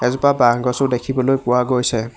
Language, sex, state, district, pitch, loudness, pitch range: Assamese, male, Assam, Hailakandi, 125 Hz, -17 LUFS, 120-135 Hz